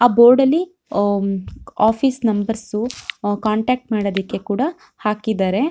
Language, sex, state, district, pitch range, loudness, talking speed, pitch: Kannada, female, Karnataka, Shimoga, 205-250 Hz, -19 LUFS, 115 wpm, 220 Hz